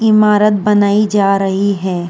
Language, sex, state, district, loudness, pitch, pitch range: Hindi, female, Uttar Pradesh, Jyotiba Phule Nagar, -12 LUFS, 205 Hz, 195-210 Hz